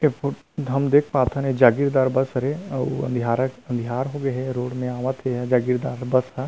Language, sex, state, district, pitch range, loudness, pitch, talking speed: Chhattisgarhi, male, Chhattisgarh, Rajnandgaon, 125-140 Hz, -22 LUFS, 130 Hz, 185 wpm